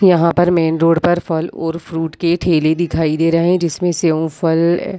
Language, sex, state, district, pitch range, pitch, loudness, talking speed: Hindi, female, Chhattisgarh, Raigarh, 160-175 Hz, 165 Hz, -15 LUFS, 215 wpm